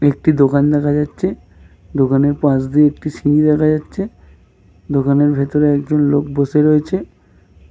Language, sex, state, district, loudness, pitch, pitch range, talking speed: Bengali, male, Jharkhand, Jamtara, -15 LUFS, 145 Hz, 140-150 Hz, 140 wpm